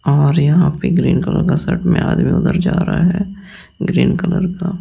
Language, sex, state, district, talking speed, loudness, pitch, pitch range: Hindi, male, Delhi, New Delhi, 210 wpm, -15 LUFS, 180 Hz, 175-185 Hz